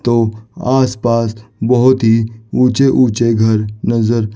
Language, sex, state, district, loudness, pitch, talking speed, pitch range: Hindi, male, Chandigarh, Chandigarh, -14 LUFS, 115 Hz, 110 wpm, 110-125 Hz